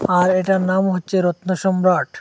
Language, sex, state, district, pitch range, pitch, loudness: Bengali, male, Assam, Hailakandi, 180-190 Hz, 185 Hz, -18 LUFS